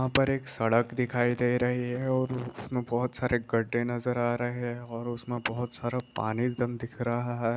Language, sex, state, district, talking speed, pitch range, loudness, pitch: Hindi, male, Bihar, East Champaran, 205 wpm, 120-125 Hz, -30 LUFS, 120 Hz